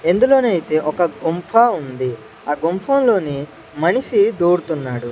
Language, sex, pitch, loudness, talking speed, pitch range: Telugu, male, 165 Hz, -17 LUFS, 105 wpm, 140-205 Hz